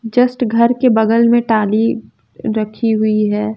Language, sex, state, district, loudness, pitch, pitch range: Hindi, female, Bihar, West Champaran, -14 LUFS, 225 Hz, 215-235 Hz